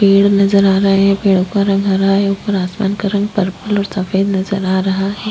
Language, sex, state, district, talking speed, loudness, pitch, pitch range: Hindi, female, Maharashtra, Aurangabad, 235 wpm, -14 LUFS, 195 Hz, 195-200 Hz